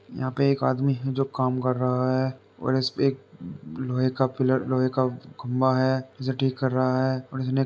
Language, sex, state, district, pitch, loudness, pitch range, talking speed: Hindi, male, Uttar Pradesh, Jalaun, 130 Hz, -25 LUFS, 130-135 Hz, 225 wpm